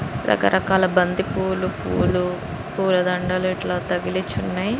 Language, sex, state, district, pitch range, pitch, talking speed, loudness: Telugu, female, Andhra Pradesh, Srikakulam, 175-190 Hz, 180 Hz, 100 wpm, -21 LUFS